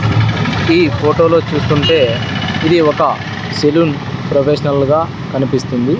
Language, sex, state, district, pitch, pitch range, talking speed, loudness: Telugu, male, Andhra Pradesh, Sri Satya Sai, 145 Hz, 135-160 Hz, 100 wpm, -13 LUFS